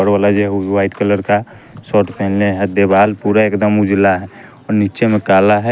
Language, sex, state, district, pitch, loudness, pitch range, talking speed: Hindi, male, Bihar, West Champaran, 100 Hz, -14 LUFS, 100-105 Hz, 200 wpm